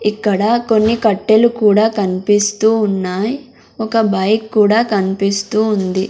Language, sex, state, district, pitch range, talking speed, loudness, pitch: Telugu, female, Andhra Pradesh, Sri Satya Sai, 200-225 Hz, 110 wpm, -14 LUFS, 215 Hz